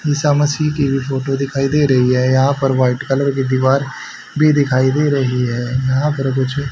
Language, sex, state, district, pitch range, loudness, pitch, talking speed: Hindi, male, Haryana, Charkhi Dadri, 130-145 Hz, -16 LUFS, 135 Hz, 205 wpm